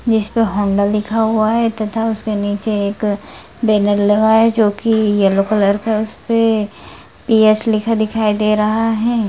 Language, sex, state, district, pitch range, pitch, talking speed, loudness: Hindi, female, Bihar, Lakhisarai, 210-225 Hz, 215 Hz, 175 wpm, -15 LUFS